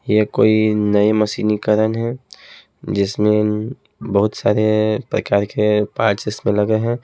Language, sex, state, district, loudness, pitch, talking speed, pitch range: Hindi, male, Haryana, Jhajjar, -17 LUFS, 105 Hz, 130 wpm, 105-110 Hz